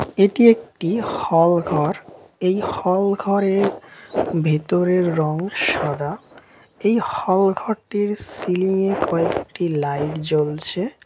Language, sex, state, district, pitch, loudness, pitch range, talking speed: Bengali, male, West Bengal, Dakshin Dinajpur, 185 Hz, -20 LUFS, 165-205 Hz, 85 wpm